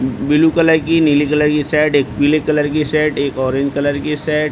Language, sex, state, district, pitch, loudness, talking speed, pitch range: Hindi, male, Bihar, Saran, 150 Hz, -15 LUFS, 240 wpm, 145-155 Hz